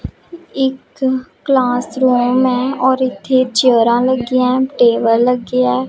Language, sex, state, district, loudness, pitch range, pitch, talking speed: Punjabi, female, Punjab, Pathankot, -14 LUFS, 245-260 Hz, 255 Hz, 100 wpm